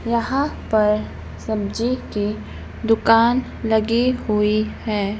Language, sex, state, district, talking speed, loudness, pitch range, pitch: Hindi, female, Madhya Pradesh, Bhopal, 90 wpm, -20 LUFS, 210-235 Hz, 220 Hz